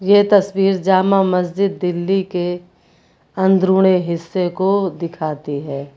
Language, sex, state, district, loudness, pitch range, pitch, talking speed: Hindi, female, Uttar Pradesh, Lucknow, -17 LUFS, 175-195 Hz, 185 Hz, 110 wpm